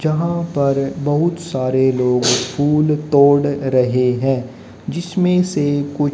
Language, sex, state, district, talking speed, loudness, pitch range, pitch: Hindi, male, Haryana, Jhajjar, 115 wpm, -17 LUFS, 130-155 Hz, 145 Hz